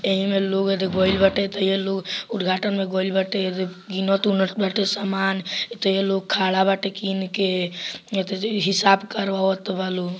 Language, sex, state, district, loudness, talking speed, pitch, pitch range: Bhojpuri, male, Bihar, Muzaffarpur, -22 LUFS, 195 wpm, 195 Hz, 190-195 Hz